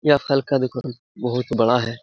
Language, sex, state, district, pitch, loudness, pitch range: Hindi, male, Bihar, Supaul, 125 Hz, -21 LUFS, 125-135 Hz